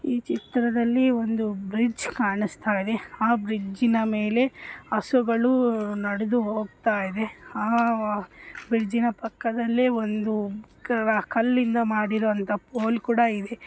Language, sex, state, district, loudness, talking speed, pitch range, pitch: Kannada, female, Karnataka, Bellary, -25 LUFS, 95 wpm, 215-235 Hz, 225 Hz